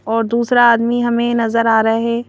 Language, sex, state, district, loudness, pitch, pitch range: Hindi, female, Madhya Pradesh, Bhopal, -14 LUFS, 235 Hz, 230-240 Hz